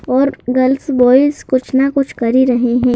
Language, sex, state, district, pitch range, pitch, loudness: Hindi, male, Madhya Pradesh, Bhopal, 250-270 Hz, 260 Hz, -13 LUFS